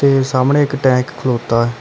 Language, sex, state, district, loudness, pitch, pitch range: Punjabi, male, Karnataka, Bangalore, -15 LUFS, 130 Hz, 120-140 Hz